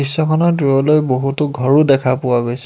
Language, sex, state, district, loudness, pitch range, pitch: Assamese, male, Assam, Hailakandi, -14 LUFS, 130-150 Hz, 135 Hz